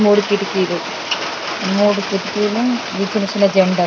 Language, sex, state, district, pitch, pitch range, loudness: Telugu, female, Andhra Pradesh, Krishna, 200 Hz, 195-210 Hz, -17 LUFS